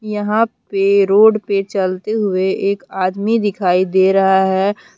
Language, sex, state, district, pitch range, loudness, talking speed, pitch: Hindi, female, Jharkhand, Deoghar, 190-210 Hz, -15 LUFS, 145 wpm, 200 Hz